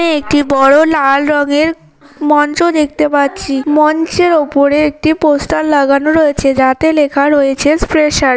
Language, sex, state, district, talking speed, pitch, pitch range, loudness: Bengali, female, West Bengal, Kolkata, 130 wpm, 295 Hz, 280-310 Hz, -11 LUFS